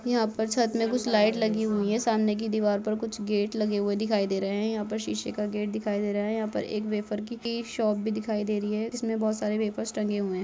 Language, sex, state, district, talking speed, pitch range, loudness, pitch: Hindi, male, Rajasthan, Churu, 275 wpm, 210-220 Hz, -28 LUFS, 215 Hz